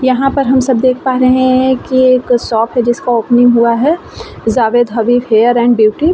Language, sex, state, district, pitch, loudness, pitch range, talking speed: Hindi, female, Bihar, Vaishali, 245 Hz, -11 LUFS, 235-260 Hz, 215 wpm